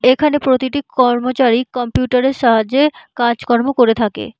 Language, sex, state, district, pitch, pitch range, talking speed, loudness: Bengali, female, West Bengal, North 24 Parganas, 255 Hz, 240-265 Hz, 125 wpm, -15 LUFS